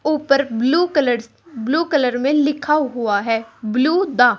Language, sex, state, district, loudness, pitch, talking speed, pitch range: Hindi, female, Uttar Pradesh, Saharanpur, -18 LUFS, 270 Hz, 150 wpm, 235-300 Hz